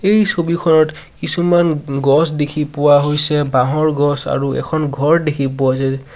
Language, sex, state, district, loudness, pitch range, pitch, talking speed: Assamese, male, Assam, Sonitpur, -15 LUFS, 140-160 Hz, 150 Hz, 165 wpm